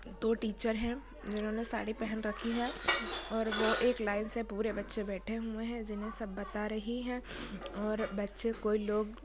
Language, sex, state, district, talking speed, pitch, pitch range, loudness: Hindi, female, Goa, North and South Goa, 175 wpm, 220 Hz, 210-230 Hz, -35 LUFS